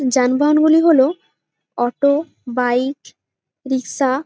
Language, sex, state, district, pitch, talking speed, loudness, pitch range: Bengali, female, West Bengal, Jalpaiguri, 270 Hz, 100 wpm, -17 LUFS, 255-295 Hz